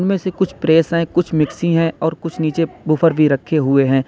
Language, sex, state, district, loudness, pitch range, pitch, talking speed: Hindi, male, Uttar Pradesh, Lalitpur, -17 LUFS, 155-170 Hz, 160 Hz, 235 wpm